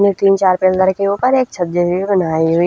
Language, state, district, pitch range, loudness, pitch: Haryanvi, Haryana, Rohtak, 175-200 Hz, -14 LUFS, 190 Hz